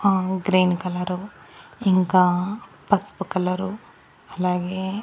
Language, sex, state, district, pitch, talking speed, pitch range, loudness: Telugu, female, Andhra Pradesh, Annamaya, 185 Hz, 95 wpm, 180-195 Hz, -23 LUFS